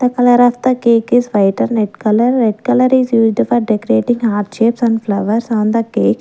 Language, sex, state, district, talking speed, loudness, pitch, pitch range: English, female, Maharashtra, Gondia, 220 wpm, -13 LUFS, 230 Hz, 215-245 Hz